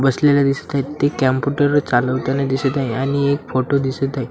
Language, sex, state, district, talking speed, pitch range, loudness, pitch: Marathi, male, Maharashtra, Washim, 165 wpm, 130-140 Hz, -18 LUFS, 135 Hz